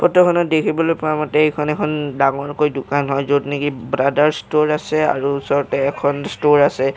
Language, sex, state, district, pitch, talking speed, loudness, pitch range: Assamese, male, Assam, Kamrup Metropolitan, 145 Hz, 165 wpm, -17 LUFS, 140-150 Hz